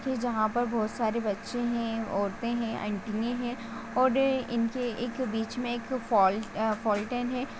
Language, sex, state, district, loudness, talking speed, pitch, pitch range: Hindi, female, Bihar, Saran, -30 LUFS, 150 wpm, 235 Hz, 220-245 Hz